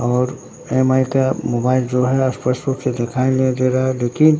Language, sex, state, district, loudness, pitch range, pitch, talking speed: Hindi, male, Bihar, Katihar, -18 LUFS, 125-130 Hz, 130 Hz, 205 wpm